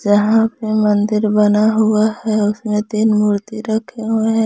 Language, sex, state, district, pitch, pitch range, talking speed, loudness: Hindi, female, Jharkhand, Garhwa, 215 Hz, 210-220 Hz, 160 wpm, -16 LUFS